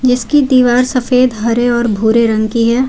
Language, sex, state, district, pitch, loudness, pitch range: Hindi, female, Jharkhand, Garhwa, 245 Hz, -12 LUFS, 230-255 Hz